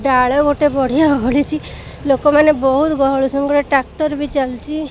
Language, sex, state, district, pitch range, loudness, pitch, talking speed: Odia, female, Odisha, Khordha, 270-295 Hz, -15 LUFS, 285 Hz, 120 wpm